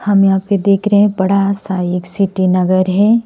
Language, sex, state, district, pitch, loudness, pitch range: Hindi, female, Assam, Sonitpur, 195 Hz, -14 LUFS, 185-200 Hz